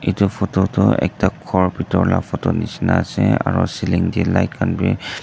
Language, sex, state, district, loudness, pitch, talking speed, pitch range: Nagamese, male, Nagaland, Dimapur, -18 LUFS, 95 Hz, 185 wpm, 90-100 Hz